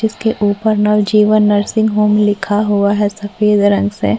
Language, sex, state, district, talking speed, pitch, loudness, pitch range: Hindi, female, Chhattisgarh, Korba, 170 wpm, 210 Hz, -13 LUFS, 205-210 Hz